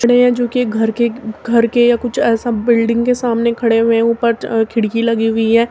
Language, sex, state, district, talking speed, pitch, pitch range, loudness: Hindi, female, Uttar Pradesh, Muzaffarnagar, 240 wpm, 230 Hz, 225-240 Hz, -14 LUFS